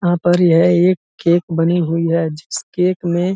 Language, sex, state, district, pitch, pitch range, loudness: Hindi, male, Uttar Pradesh, Budaun, 175 Hz, 165-180 Hz, -16 LUFS